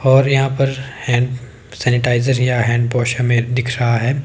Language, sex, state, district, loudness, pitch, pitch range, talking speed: Hindi, male, Himachal Pradesh, Shimla, -16 LUFS, 125 Hz, 120-135 Hz, 170 wpm